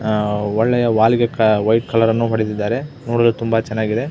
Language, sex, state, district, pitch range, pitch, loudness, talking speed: Kannada, male, Karnataka, Belgaum, 110-120 Hz, 115 Hz, -17 LUFS, 130 wpm